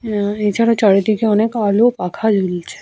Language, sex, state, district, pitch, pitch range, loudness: Bengali, female, West Bengal, Paschim Medinipur, 210 Hz, 200-220 Hz, -16 LUFS